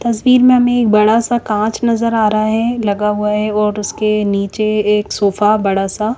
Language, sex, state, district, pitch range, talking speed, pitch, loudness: Hindi, female, Chandigarh, Chandigarh, 210-230 Hz, 195 wpm, 215 Hz, -14 LUFS